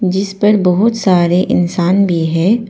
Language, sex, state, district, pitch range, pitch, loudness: Hindi, female, Arunachal Pradesh, Papum Pare, 175-205 Hz, 185 Hz, -13 LUFS